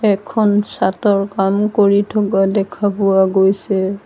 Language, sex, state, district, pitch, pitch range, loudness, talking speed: Assamese, female, Assam, Sonitpur, 200 Hz, 195-205 Hz, -15 LUFS, 120 wpm